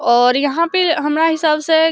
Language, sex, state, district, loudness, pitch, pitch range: Maithili, female, Bihar, Samastipur, -15 LUFS, 320 Hz, 295-325 Hz